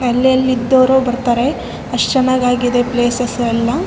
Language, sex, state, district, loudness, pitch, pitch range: Kannada, male, Karnataka, Raichur, -14 LUFS, 245 Hz, 240-260 Hz